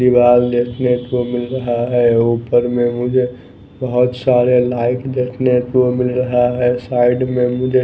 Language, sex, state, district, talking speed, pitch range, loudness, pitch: Hindi, male, Bihar, West Champaran, 155 wpm, 120-125 Hz, -15 LUFS, 125 Hz